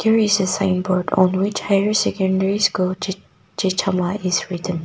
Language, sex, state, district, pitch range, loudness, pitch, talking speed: English, female, Nagaland, Kohima, 185-200 Hz, -19 LUFS, 190 Hz, 135 wpm